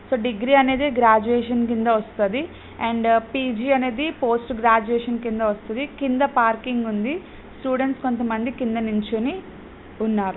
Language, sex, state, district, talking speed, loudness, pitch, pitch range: Telugu, female, Telangana, Karimnagar, 135 wpm, -22 LUFS, 240 Hz, 225-265 Hz